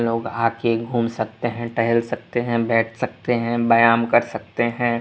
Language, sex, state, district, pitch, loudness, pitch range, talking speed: Hindi, male, Tripura, West Tripura, 115 Hz, -21 LUFS, 115-120 Hz, 190 wpm